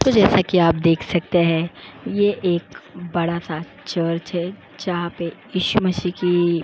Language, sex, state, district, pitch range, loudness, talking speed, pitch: Hindi, female, Goa, North and South Goa, 170-185 Hz, -21 LUFS, 180 wpm, 175 Hz